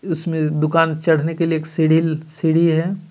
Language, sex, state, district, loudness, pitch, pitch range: Hindi, male, Jharkhand, Ranchi, -18 LUFS, 160 Hz, 155-165 Hz